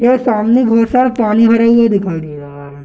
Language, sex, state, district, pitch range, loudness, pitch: Hindi, male, Bihar, Gaya, 165-235 Hz, -11 LUFS, 230 Hz